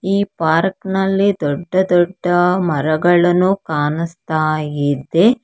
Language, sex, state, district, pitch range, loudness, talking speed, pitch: Kannada, female, Karnataka, Bangalore, 155-190 Hz, -16 LUFS, 90 wpm, 175 Hz